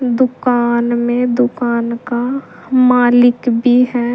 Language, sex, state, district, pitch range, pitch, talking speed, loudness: Hindi, female, Uttar Pradesh, Saharanpur, 240-250 Hz, 245 Hz, 100 wpm, -14 LUFS